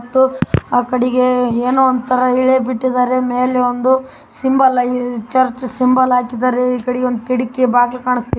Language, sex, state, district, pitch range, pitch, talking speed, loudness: Kannada, female, Karnataka, Raichur, 245-255 Hz, 250 Hz, 155 wpm, -15 LUFS